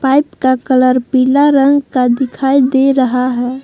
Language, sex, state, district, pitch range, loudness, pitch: Hindi, female, Jharkhand, Palamu, 255-275 Hz, -12 LUFS, 265 Hz